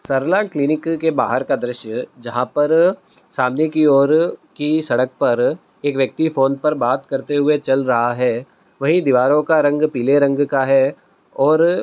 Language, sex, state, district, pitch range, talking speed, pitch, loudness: Hindi, male, Uttar Pradesh, Budaun, 130-155 Hz, 165 wpm, 140 Hz, -17 LUFS